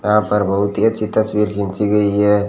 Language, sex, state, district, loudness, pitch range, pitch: Hindi, male, Rajasthan, Bikaner, -17 LUFS, 100-105 Hz, 105 Hz